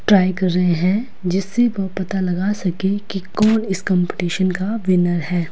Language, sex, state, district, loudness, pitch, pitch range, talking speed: Hindi, female, Himachal Pradesh, Shimla, -19 LUFS, 190 Hz, 180-200 Hz, 175 wpm